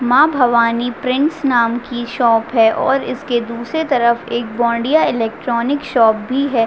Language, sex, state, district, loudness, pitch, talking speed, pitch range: Hindi, female, Chhattisgarh, Raigarh, -16 LUFS, 240 Hz, 155 wpm, 235-260 Hz